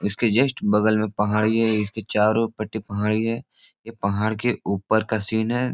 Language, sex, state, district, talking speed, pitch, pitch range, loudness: Hindi, male, Bihar, Supaul, 190 wpm, 110 Hz, 105-115 Hz, -22 LUFS